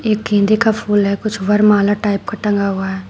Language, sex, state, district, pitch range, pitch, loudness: Hindi, female, Uttar Pradesh, Shamli, 200-215 Hz, 205 Hz, -15 LUFS